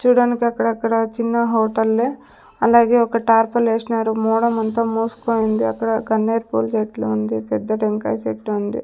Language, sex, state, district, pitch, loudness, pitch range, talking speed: Telugu, female, Andhra Pradesh, Sri Satya Sai, 225 Hz, -19 LUFS, 215-230 Hz, 140 wpm